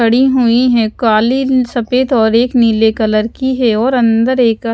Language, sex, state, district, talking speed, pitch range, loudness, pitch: Hindi, female, Chandigarh, Chandigarh, 190 wpm, 225-255 Hz, -12 LUFS, 235 Hz